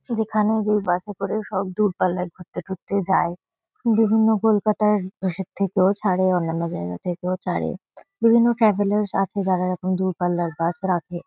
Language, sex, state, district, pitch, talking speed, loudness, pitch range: Bengali, female, West Bengal, Kolkata, 190 Hz, 150 wpm, -22 LUFS, 180-210 Hz